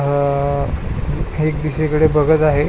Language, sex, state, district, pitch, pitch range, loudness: Marathi, male, Maharashtra, Pune, 150 Hz, 140-155 Hz, -18 LUFS